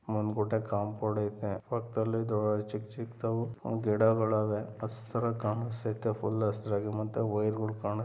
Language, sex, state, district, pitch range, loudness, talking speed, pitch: Kannada, male, Karnataka, Mysore, 105-115 Hz, -32 LUFS, 125 wpm, 110 Hz